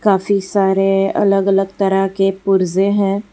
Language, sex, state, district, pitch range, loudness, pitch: Hindi, female, Gujarat, Valsad, 195-200 Hz, -15 LUFS, 195 Hz